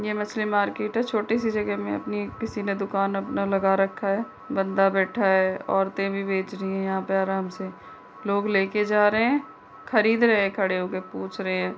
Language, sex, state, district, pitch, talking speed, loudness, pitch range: Hindi, female, Uttar Pradesh, Budaun, 195 Hz, 210 wpm, -25 LUFS, 190-210 Hz